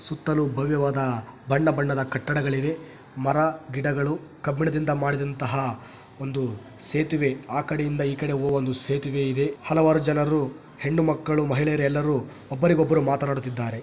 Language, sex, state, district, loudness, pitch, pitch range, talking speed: Kannada, male, Karnataka, Chamarajanagar, -25 LUFS, 140 Hz, 135-155 Hz, 115 wpm